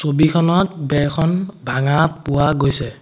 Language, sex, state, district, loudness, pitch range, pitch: Assamese, male, Assam, Sonitpur, -17 LUFS, 140-165 Hz, 150 Hz